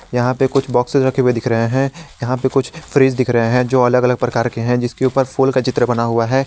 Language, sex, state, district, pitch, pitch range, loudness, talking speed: Hindi, male, Jharkhand, Garhwa, 125 Hz, 120-135 Hz, -16 LUFS, 280 wpm